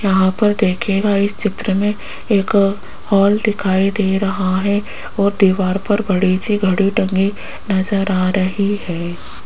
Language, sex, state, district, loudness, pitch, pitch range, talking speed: Hindi, female, Rajasthan, Jaipur, -17 LUFS, 195 Hz, 190-205 Hz, 145 wpm